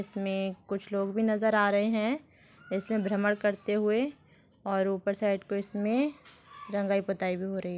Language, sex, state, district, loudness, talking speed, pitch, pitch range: Hindi, female, Bihar, Supaul, -30 LUFS, 175 wpm, 205 Hz, 195-215 Hz